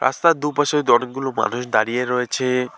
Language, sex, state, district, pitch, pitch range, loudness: Bengali, male, West Bengal, Alipurduar, 130 Hz, 125-145 Hz, -19 LUFS